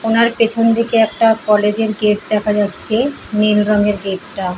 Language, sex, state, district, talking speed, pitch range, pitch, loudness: Bengali, female, West Bengal, Paschim Medinipur, 155 wpm, 210-225 Hz, 215 Hz, -14 LUFS